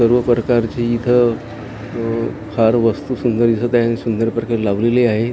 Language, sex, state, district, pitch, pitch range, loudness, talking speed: Marathi, male, Maharashtra, Gondia, 115 Hz, 115-120 Hz, -17 LUFS, 180 wpm